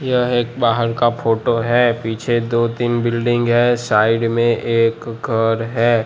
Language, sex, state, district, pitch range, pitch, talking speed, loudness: Hindi, male, Gujarat, Gandhinagar, 115-120 Hz, 115 Hz, 160 wpm, -17 LUFS